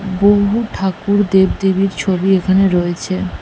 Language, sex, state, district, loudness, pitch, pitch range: Bengali, female, West Bengal, North 24 Parganas, -15 LUFS, 190 Hz, 185-200 Hz